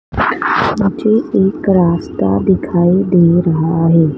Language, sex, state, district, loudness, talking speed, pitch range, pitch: Hindi, female, Madhya Pradesh, Dhar, -13 LUFS, 100 wpm, 165-190 Hz, 175 Hz